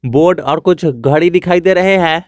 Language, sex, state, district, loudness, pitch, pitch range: Hindi, male, Jharkhand, Garhwa, -11 LUFS, 175 Hz, 155-180 Hz